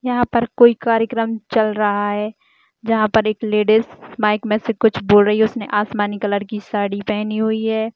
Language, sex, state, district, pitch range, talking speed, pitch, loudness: Hindi, female, Chhattisgarh, Jashpur, 210-230 Hz, 195 wpm, 220 Hz, -18 LUFS